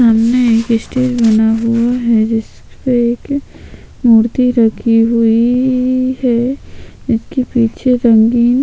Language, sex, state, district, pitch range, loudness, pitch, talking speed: Hindi, female, Chhattisgarh, Sukma, 225-250 Hz, -13 LUFS, 235 Hz, 105 wpm